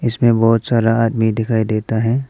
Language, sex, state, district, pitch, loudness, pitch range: Hindi, male, Arunachal Pradesh, Papum Pare, 115 Hz, -16 LUFS, 110-115 Hz